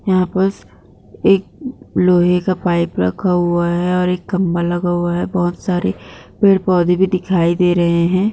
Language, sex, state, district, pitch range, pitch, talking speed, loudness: Hindi, female, Maharashtra, Chandrapur, 175-185 Hz, 180 Hz, 175 wpm, -16 LUFS